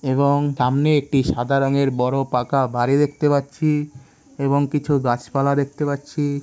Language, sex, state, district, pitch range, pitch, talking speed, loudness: Bengali, male, West Bengal, Kolkata, 135-145 Hz, 140 Hz, 150 wpm, -20 LUFS